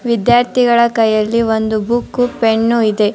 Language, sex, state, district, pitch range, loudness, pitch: Kannada, female, Karnataka, Dharwad, 220-240 Hz, -13 LUFS, 230 Hz